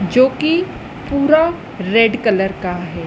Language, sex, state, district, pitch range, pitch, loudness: Hindi, female, Madhya Pradesh, Dhar, 190-285 Hz, 225 Hz, -16 LUFS